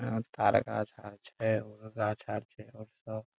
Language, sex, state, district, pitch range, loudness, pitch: Maithili, male, Bihar, Saharsa, 105-110 Hz, -33 LUFS, 110 Hz